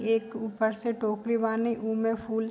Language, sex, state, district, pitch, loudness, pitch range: Hindi, female, Bihar, Saharsa, 225 Hz, -29 LUFS, 220-225 Hz